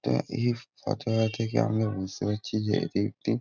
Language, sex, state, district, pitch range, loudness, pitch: Bengali, male, West Bengal, Jhargram, 105-120 Hz, -29 LUFS, 110 Hz